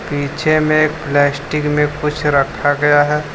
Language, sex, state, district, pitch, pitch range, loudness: Hindi, male, Jharkhand, Deoghar, 150 Hz, 145-155 Hz, -15 LUFS